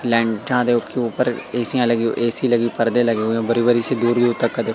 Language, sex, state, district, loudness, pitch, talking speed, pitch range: Hindi, male, Madhya Pradesh, Katni, -18 LUFS, 120 Hz, 175 wpm, 115-120 Hz